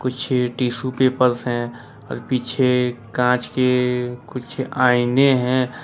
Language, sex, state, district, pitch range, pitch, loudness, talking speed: Hindi, male, Jharkhand, Ranchi, 125-130 Hz, 125 Hz, -20 LUFS, 115 wpm